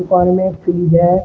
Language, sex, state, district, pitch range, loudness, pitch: Hindi, male, Uttar Pradesh, Shamli, 175-185 Hz, -14 LUFS, 180 Hz